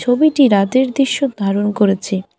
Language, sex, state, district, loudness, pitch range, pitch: Bengali, female, West Bengal, Alipurduar, -15 LUFS, 200-265 Hz, 225 Hz